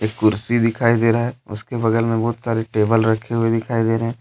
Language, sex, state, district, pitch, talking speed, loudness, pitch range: Hindi, male, Jharkhand, Deoghar, 115 Hz, 240 wpm, -19 LUFS, 110-115 Hz